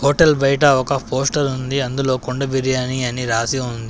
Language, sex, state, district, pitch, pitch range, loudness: Telugu, male, Telangana, Adilabad, 130 Hz, 125-140 Hz, -18 LUFS